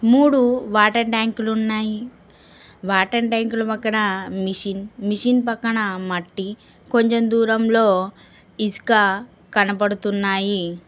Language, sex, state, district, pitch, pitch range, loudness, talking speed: Telugu, female, Telangana, Mahabubabad, 215 Hz, 200-230 Hz, -20 LUFS, 85 wpm